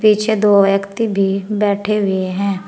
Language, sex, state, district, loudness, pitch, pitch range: Hindi, female, Uttar Pradesh, Saharanpur, -16 LUFS, 200 Hz, 195-210 Hz